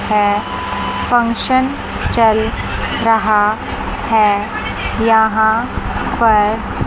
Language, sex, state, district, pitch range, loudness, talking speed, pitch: Hindi, female, Chandigarh, Chandigarh, 210-230 Hz, -15 LUFS, 60 wpm, 220 Hz